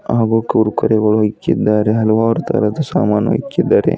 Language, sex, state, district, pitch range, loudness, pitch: Kannada, female, Karnataka, Bidar, 105-115 Hz, -15 LUFS, 110 Hz